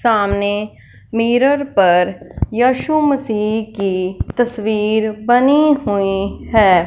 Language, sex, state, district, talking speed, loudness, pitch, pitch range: Hindi, female, Punjab, Fazilka, 85 wpm, -16 LUFS, 220 Hz, 200-245 Hz